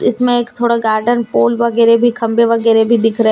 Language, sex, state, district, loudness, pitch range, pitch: Hindi, female, Jharkhand, Deoghar, -13 LUFS, 225-235 Hz, 230 Hz